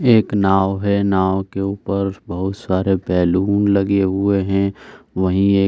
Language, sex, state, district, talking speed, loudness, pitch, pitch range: Hindi, male, Bihar, Saran, 160 wpm, -18 LUFS, 95 Hz, 95-100 Hz